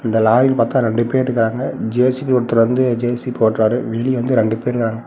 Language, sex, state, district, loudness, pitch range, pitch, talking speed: Tamil, male, Tamil Nadu, Namakkal, -17 LUFS, 115-130 Hz, 120 Hz, 190 wpm